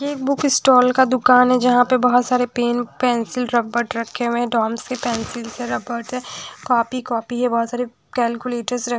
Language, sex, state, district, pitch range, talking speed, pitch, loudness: Hindi, female, Odisha, Sambalpur, 235-250 Hz, 195 wpm, 245 Hz, -19 LUFS